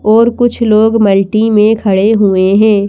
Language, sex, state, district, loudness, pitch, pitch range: Hindi, female, Madhya Pradesh, Bhopal, -9 LUFS, 215 Hz, 200-225 Hz